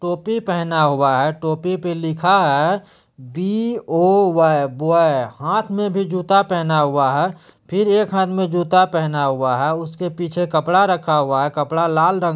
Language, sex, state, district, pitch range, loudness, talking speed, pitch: Hindi, male, Bihar, Supaul, 155-190 Hz, -18 LUFS, 195 wpm, 170 Hz